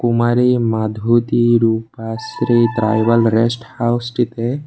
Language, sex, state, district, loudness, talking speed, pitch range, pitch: Bengali, male, Tripura, West Tripura, -16 LUFS, 75 wpm, 115-120 Hz, 115 Hz